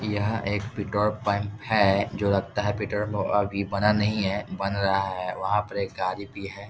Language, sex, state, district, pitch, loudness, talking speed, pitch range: Hindi, male, Bihar, Jahanabad, 100 Hz, -26 LUFS, 205 wpm, 100-105 Hz